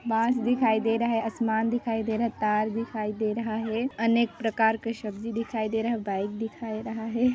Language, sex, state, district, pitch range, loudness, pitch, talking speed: Hindi, female, Chhattisgarh, Sarguja, 220-230 Hz, -27 LUFS, 225 Hz, 220 wpm